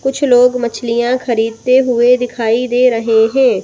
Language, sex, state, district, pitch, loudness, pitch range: Hindi, female, Madhya Pradesh, Bhopal, 245 Hz, -13 LUFS, 230-255 Hz